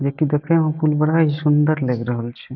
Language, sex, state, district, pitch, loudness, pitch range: Maithili, male, Bihar, Saharsa, 150 Hz, -19 LUFS, 130-155 Hz